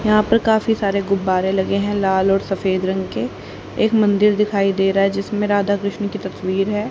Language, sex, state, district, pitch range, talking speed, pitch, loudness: Hindi, female, Haryana, Rohtak, 195-210 Hz, 200 wpm, 200 Hz, -18 LUFS